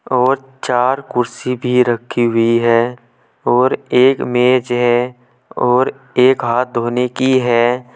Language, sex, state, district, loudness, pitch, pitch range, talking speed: Hindi, male, Uttar Pradesh, Saharanpur, -15 LUFS, 125 Hz, 120-130 Hz, 130 wpm